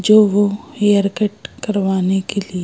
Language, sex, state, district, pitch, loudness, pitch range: Hindi, female, Madhya Pradesh, Bhopal, 205 Hz, -17 LUFS, 195-210 Hz